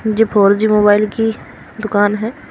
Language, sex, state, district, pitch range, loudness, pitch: Hindi, female, Haryana, Rohtak, 205-225 Hz, -14 LUFS, 215 Hz